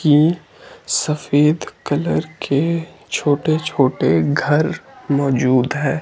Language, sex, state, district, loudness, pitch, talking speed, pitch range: Hindi, male, Himachal Pradesh, Shimla, -18 LUFS, 150 Hz, 90 wpm, 140-165 Hz